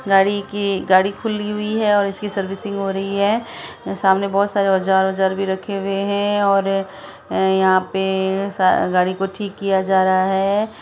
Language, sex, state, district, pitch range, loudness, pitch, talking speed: Hindi, female, Bihar, Saharsa, 190-200 Hz, -19 LUFS, 195 Hz, 170 wpm